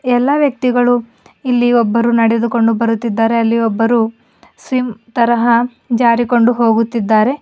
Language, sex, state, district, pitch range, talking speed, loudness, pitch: Kannada, female, Karnataka, Bidar, 230-245 Hz, 95 wpm, -14 LUFS, 235 Hz